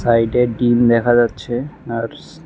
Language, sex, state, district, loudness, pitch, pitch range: Bengali, male, Tripura, West Tripura, -17 LUFS, 120 Hz, 115-125 Hz